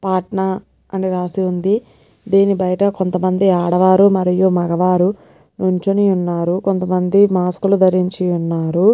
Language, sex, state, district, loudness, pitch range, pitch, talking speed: Telugu, female, Telangana, Nalgonda, -16 LUFS, 180-195 Hz, 185 Hz, 100 wpm